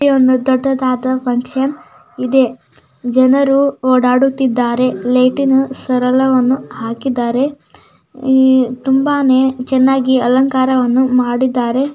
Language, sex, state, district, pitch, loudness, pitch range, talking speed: Kannada, female, Karnataka, Gulbarga, 260 Hz, -14 LUFS, 250-270 Hz, 75 wpm